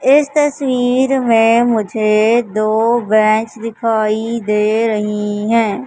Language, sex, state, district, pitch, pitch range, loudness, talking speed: Hindi, male, Madhya Pradesh, Katni, 225 Hz, 215-240 Hz, -14 LUFS, 100 wpm